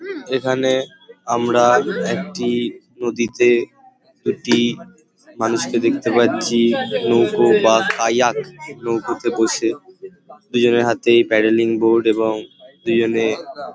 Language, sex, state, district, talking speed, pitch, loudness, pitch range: Bengali, male, West Bengal, Paschim Medinipur, 85 wpm, 120 Hz, -18 LUFS, 115-140 Hz